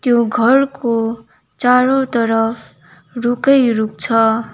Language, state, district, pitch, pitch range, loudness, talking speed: Nepali, West Bengal, Darjeeling, 235 Hz, 225-250 Hz, -15 LUFS, 80 wpm